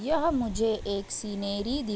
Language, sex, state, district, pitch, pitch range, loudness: Hindi, female, Uttar Pradesh, Budaun, 220 Hz, 205-265 Hz, -29 LUFS